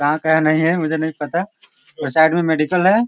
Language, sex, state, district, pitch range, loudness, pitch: Hindi, male, Bihar, Sitamarhi, 155-170 Hz, -17 LUFS, 160 Hz